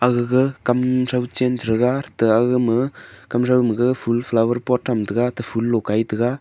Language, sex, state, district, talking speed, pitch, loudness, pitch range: Wancho, male, Arunachal Pradesh, Longding, 160 wpm, 120 Hz, -20 LUFS, 115-125 Hz